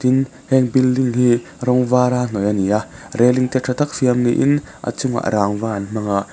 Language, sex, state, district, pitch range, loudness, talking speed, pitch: Mizo, male, Mizoram, Aizawl, 110-130 Hz, -18 LUFS, 200 wpm, 125 Hz